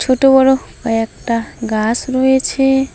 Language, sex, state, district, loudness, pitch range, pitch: Bengali, female, West Bengal, Alipurduar, -15 LUFS, 230-265 Hz, 260 Hz